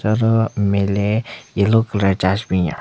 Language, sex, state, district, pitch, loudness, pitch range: Rengma, male, Nagaland, Kohima, 100 Hz, -18 LUFS, 100-115 Hz